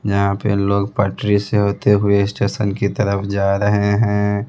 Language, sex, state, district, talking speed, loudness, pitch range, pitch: Hindi, male, Bihar, West Champaran, 175 wpm, -17 LUFS, 100-105 Hz, 100 Hz